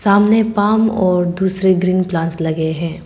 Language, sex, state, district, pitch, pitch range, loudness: Hindi, female, Arunachal Pradesh, Papum Pare, 185 Hz, 170-205 Hz, -15 LUFS